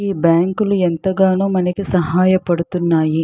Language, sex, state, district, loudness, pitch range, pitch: Telugu, female, Andhra Pradesh, Chittoor, -16 LUFS, 170-190 Hz, 185 Hz